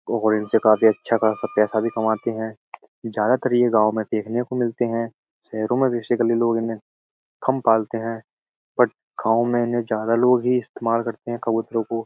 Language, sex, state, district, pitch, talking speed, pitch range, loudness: Hindi, male, Uttar Pradesh, Budaun, 115 Hz, 185 wpm, 110-120 Hz, -21 LUFS